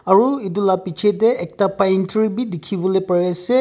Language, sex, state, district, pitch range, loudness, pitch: Nagamese, male, Nagaland, Kohima, 185-215 Hz, -18 LUFS, 195 Hz